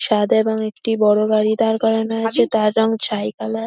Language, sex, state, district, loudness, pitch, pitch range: Bengali, female, West Bengal, North 24 Parganas, -18 LUFS, 220 Hz, 210-225 Hz